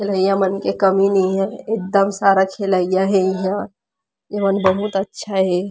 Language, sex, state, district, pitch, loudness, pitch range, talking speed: Chhattisgarhi, female, Chhattisgarh, Rajnandgaon, 195 Hz, -18 LUFS, 190-200 Hz, 160 wpm